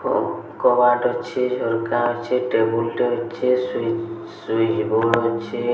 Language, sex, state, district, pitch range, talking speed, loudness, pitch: Odia, male, Odisha, Sambalpur, 115-125 Hz, 115 wpm, -21 LUFS, 120 Hz